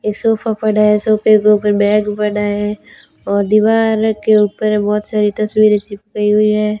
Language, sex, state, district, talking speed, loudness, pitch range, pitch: Hindi, female, Rajasthan, Bikaner, 185 wpm, -14 LUFS, 210-215 Hz, 210 Hz